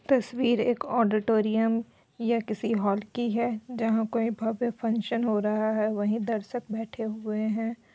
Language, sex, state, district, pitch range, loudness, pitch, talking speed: Hindi, female, Uttar Pradesh, Muzaffarnagar, 215-235 Hz, -28 LUFS, 225 Hz, 150 wpm